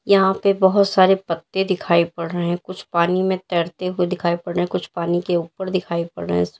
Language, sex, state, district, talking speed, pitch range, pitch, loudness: Hindi, female, Uttar Pradesh, Lalitpur, 225 wpm, 170-190 Hz, 175 Hz, -20 LUFS